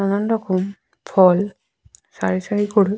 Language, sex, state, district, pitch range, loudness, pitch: Bengali, female, West Bengal, Jalpaiguri, 185-205 Hz, -19 LUFS, 200 Hz